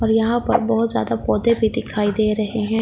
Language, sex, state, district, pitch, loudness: Hindi, female, Delhi, New Delhi, 215 Hz, -18 LUFS